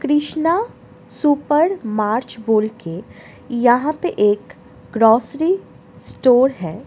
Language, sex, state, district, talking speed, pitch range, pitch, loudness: Hindi, female, Delhi, New Delhi, 105 wpm, 220-305 Hz, 250 Hz, -18 LUFS